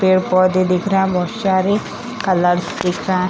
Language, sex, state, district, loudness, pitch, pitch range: Hindi, female, Bihar, Jamui, -17 LUFS, 185 Hz, 180-195 Hz